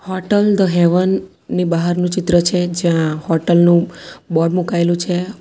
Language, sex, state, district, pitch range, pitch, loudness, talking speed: Gujarati, female, Gujarat, Valsad, 170-185 Hz, 175 Hz, -16 LUFS, 145 wpm